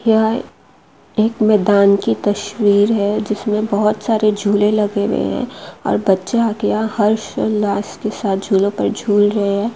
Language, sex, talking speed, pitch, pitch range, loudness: Maithili, female, 155 wpm, 210 Hz, 205-215 Hz, -16 LUFS